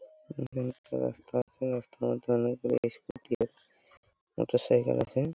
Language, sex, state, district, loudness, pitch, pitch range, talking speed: Bengali, male, West Bengal, Purulia, -32 LUFS, 125 Hz, 100-130 Hz, 145 wpm